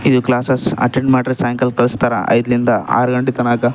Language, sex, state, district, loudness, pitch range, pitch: Kannada, male, Karnataka, Raichur, -15 LUFS, 120-130 Hz, 125 Hz